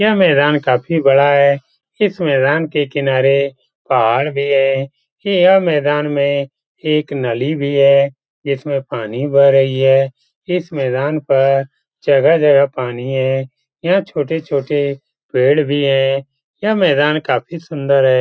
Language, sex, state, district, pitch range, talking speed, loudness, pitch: Hindi, male, Bihar, Lakhisarai, 135-150 Hz, 130 wpm, -15 LUFS, 140 Hz